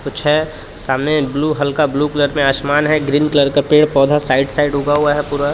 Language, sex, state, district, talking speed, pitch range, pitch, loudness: Hindi, male, Jharkhand, Palamu, 225 wpm, 140-150 Hz, 145 Hz, -15 LUFS